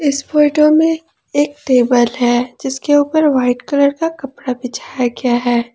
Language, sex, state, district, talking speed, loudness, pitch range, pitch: Hindi, female, Jharkhand, Palamu, 155 wpm, -15 LUFS, 245-295 Hz, 275 Hz